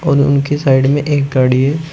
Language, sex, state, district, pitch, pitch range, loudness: Hindi, male, Uttar Pradesh, Shamli, 140 Hz, 135-145 Hz, -13 LUFS